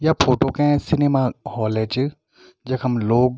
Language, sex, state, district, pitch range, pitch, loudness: Garhwali, male, Uttarakhand, Tehri Garhwal, 125-145 Hz, 130 Hz, -20 LUFS